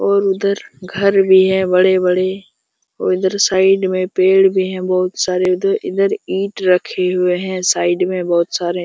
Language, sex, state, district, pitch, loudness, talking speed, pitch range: Hindi, male, Jharkhand, Jamtara, 185 Hz, -15 LUFS, 175 wpm, 180-195 Hz